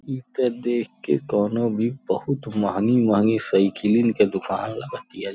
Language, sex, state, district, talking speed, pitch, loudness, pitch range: Bhojpuri, male, Uttar Pradesh, Gorakhpur, 135 wpm, 115 Hz, -22 LUFS, 105-120 Hz